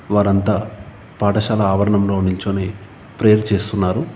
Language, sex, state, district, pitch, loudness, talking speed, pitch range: Telugu, male, Telangana, Komaram Bheem, 100 Hz, -18 LUFS, 85 wpm, 100-105 Hz